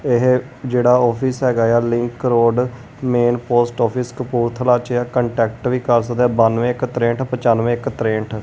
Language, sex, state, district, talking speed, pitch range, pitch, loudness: Punjabi, male, Punjab, Kapurthala, 155 wpm, 120-125 Hz, 120 Hz, -17 LUFS